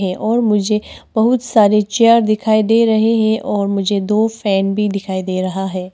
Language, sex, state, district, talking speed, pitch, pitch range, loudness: Hindi, female, Arunachal Pradesh, Papum Pare, 180 wpm, 210 Hz, 195-225 Hz, -15 LUFS